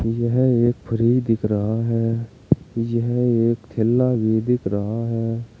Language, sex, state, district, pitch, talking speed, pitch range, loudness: Hindi, male, Uttar Pradesh, Saharanpur, 115 Hz, 140 wpm, 115-120 Hz, -21 LUFS